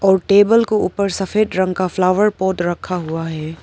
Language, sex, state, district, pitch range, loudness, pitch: Hindi, female, Arunachal Pradesh, Papum Pare, 180-200 Hz, -17 LUFS, 190 Hz